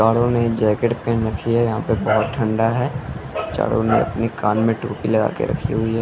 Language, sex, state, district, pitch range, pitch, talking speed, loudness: Hindi, male, Bihar, West Champaran, 110-120 Hz, 115 Hz, 220 wpm, -20 LUFS